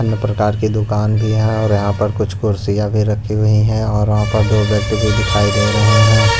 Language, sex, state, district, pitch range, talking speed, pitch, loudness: Hindi, male, Punjab, Pathankot, 105-110 Hz, 225 wpm, 105 Hz, -15 LUFS